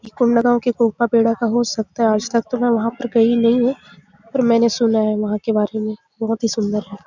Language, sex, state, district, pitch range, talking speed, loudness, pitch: Hindi, female, Chhattisgarh, Bastar, 215-235 Hz, 255 wpm, -18 LUFS, 230 Hz